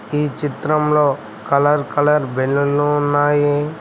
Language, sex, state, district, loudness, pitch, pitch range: Telugu, male, Telangana, Mahabubabad, -17 LUFS, 145 Hz, 140-150 Hz